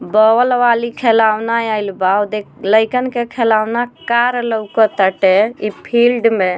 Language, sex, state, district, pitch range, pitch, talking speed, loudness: Bhojpuri, female, Bihar, Muzaffarpur, 210-240 Hz, 225 Hz, 145 wpm, -14 LUFS